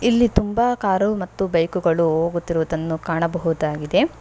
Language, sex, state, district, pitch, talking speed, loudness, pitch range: Kannada, female, Karnataka, Bangalore, 170 Hz, 115 wpm, -21 LUFS, 165-205 Hz